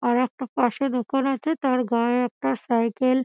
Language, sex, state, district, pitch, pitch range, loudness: Bengali, female, West Bengal, Dakshin Dinajpur, 250 Hz, 240-265 Hz, -24 LUFS